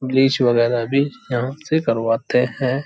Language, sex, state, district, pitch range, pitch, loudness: Hindi, male, Uttar Pradesh, Hamirpur, 120-135 Hz, 125 Hz, -19 LUFS